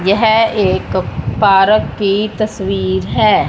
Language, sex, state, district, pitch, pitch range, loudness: Hindi, female, Haryana, Rohtak, 200 Hz, 190-215 Hz, -14 LUFS